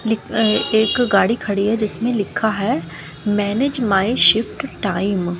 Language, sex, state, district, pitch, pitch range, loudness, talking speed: Hindi, female, Haryana, Jhajjar, 215 Hz, 195-225 Hz, -18 LUFS, 145 wpm